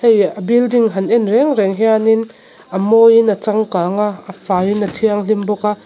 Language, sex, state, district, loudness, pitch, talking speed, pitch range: Mizo, female, Mizoram, Aizawl, -14 LUFS, 215 Hz, 195 wpm, 205-225 Hz